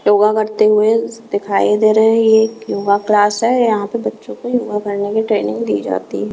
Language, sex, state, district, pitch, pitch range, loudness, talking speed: Hindi, female, Chhattisgarh, Raipur, 215 Hz, 200-225 Hz, -15 LUFS, 220 wpm